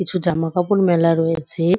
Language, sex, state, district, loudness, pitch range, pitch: Bengali, female, West Bengal, Dakshin Dinajpur, -18 LUFS, 165-185 Hz, 170 Hz